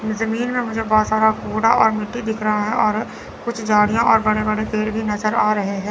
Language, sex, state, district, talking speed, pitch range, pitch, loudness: Hindi, female, Chandigarh, Chandigarh, 235 wpm, 215-225 Hz, 215 Hz, -19 LUFS